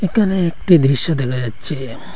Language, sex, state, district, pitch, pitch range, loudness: Bengali, male, Assam, Hailakandi, 155 Hz, 130-180 Hz, -16 LUFS